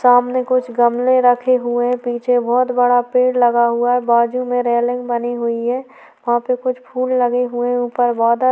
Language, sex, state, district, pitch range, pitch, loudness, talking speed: Hindi, female, Chhattisgarh, Sukma, 240-250 Hz, 245 Hz, -16 LUFS, 195 wpm